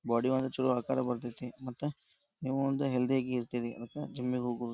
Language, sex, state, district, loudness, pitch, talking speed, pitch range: Kannada, male, Karnataka, Dharwad, -34 LUFS, 125 Hz, 200 wpm, 120-135 Hz